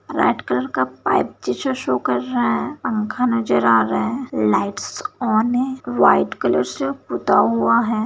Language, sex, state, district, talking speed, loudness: Hindi, female, Bihar, Bhagalpur, 170 wpm, -19 LUFS